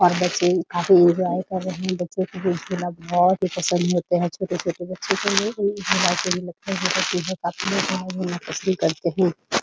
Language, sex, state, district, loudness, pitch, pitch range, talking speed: Hindi, female, Bihar, Muzaffarpur, -22 LUFS, 180 Hz, 175-185 Hz, 150 wpm